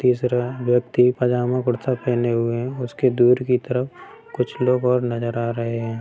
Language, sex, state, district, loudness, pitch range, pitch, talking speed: Hindi, male, Bihar, Sitamarhi, -21 LUFS, 120-125 Hz, 125 Hz, 170 wpm